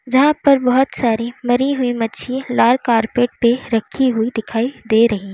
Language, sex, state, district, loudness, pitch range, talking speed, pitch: Hindi, female, Uttar Pradesh, Lalitpur, -17 LUFS, 225-260 Hz, 170 wpm, 245 Hz